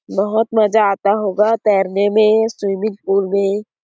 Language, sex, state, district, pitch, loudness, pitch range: Hindi, female, Chhattisgarh, Sarguja, 205 Hz, -16 LUFS, 195-215 Hz